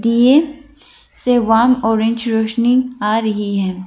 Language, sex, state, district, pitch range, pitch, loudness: Hindi, female, Arunachal Pradesh, Lower Dibang Valley, 220-255 Hz, 235 Hz, -15 LUFS